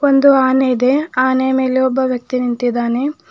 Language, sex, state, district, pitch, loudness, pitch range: Kannada, female, Karnataka, Bidar, 260 Hz, -15 LUFS, 250-270 Hz